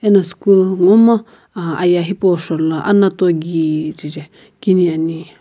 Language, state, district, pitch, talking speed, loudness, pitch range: Sumi, Nagaland, Kohima, 180 Hz, 135 wpm, -14 LUFS, 160-195 Hz